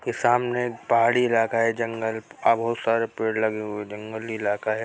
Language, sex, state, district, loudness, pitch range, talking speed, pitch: Hindi, male, Bihar, Jahanabad, -24 LUFS, 110-115 Hz, 200 wpm, 115 Hz